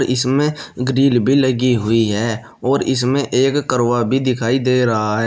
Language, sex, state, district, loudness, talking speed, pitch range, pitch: Hindi, male, Uttar Pradesh, Shamli, -16 LUFS, 170 wpm, 120-130 Hz, 125 Hz